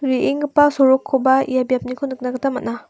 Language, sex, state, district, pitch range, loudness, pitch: Garo, female, Meghalaya, West Garo Hills, 255-275 Hz, -18 LUFS, 265 Hz